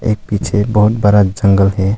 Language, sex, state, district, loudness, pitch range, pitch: Hindi, male, Arunachal Pradesh, Longding, -13 LUFS, 100-105 Hz, 105 Hz